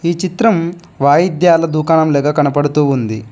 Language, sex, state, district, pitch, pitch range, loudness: Telugu, male, Telangana, Mahabubabad, 155 Hz, 145-170 Hz, -13 LUFS